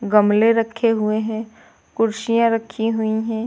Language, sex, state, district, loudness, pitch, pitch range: Hindi, female, Uttar Pradesh, Lucknow, -19 LUFS, 225 Hz, 220-230 Hz